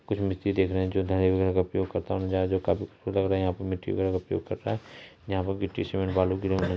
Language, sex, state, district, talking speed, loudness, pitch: Hindi, male, Bihar, Purnia, 220 wpm, -28 LUFS, 95 Hz